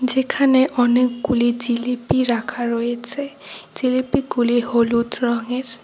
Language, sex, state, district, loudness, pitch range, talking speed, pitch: Bengali, female, West Bengal, Cooch Behar, -19 LUFS, 240-260 Hz, 80 wpm, 245 Hz